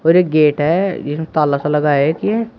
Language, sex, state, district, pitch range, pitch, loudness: Hindi, male, Uttar Pradesh, Shamli, 150-175 Hz, 155 Hz, -15 LUFS